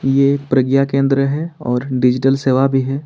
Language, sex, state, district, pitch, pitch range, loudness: Hindi, male, Jharkhand, Ranchi, 135 Hz, 130-140 Hz, -16 LUFS